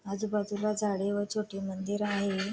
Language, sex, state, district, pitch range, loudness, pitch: Marathi, female, Maharashtra, Dhule, 195-210 Hz, -32 LUFS, 205 Hz